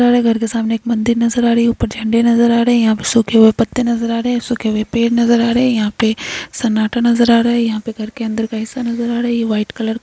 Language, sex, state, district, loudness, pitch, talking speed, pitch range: Hindi, female, Uttar Pradesh, Hamirpur, -15 LUFS, 235 Hz, 325 wpm, 225-235 Hz